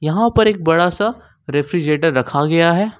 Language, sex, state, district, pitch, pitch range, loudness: Hindi, male, Jharkhand, Ranchi, 165 Hz, 150-205 Hz, -16 LUFS